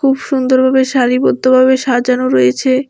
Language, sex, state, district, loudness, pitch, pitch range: Bengali, female, Tripura, West Tripura, -12 LUFS, 260 Hz, 250-260 Hz